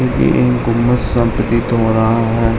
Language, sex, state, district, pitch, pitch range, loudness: Hindi, male, Uttar Pradesh, Hamirpur, 115 Hz, 110-115 Hz, -14 LUFS